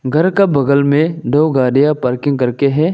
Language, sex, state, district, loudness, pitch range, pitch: Hindi, male, Arunachal Pradesh, Lower Dibang Valley, -14 LUFS, 135-155 Hz, 140 Hz